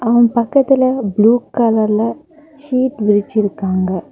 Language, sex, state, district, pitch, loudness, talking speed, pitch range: Tamil, female, Tamil Nadu, Kanyakumari, 230 Hz, -15 LUFS, 100 wpm, 210-260 Hz